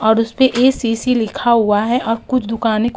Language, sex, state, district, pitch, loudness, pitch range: Hindi, female, Uttar Pradesh, Jalaun, 230 Hz, -16 LUFS, 225-250 Hz